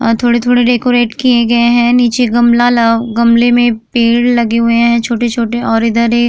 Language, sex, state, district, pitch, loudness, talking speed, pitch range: Hindi, female, Uttar Pradesh, Jyotiba Phule Nagar, 235 Hz, -10 LUFS, 190 wpm, 235-240 Hz